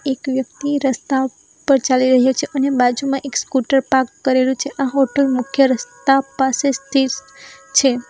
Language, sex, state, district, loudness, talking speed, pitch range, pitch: Gujarati, female, Gujarat, Valsad, -17 LUFS, 155 wpm, 255-275 Hz, 265 Hz